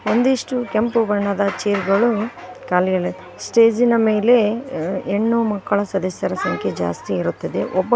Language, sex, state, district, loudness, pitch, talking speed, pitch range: Kannada, female, Karnataka, Koppal, -19 LUFS, 205 Hz, 145 wpm, 185-230 Hz